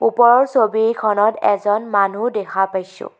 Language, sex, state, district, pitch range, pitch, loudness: Assamese, female, Assam, Kamrup Metropolitan, 200-235 Hz, 215 Hz, -17 LUFS